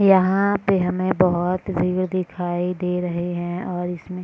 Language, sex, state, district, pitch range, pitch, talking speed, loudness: Hindi, female, Bihar, Purnia, 175-185 Hz, 180 Hz, 170 wpm, -22 LUFS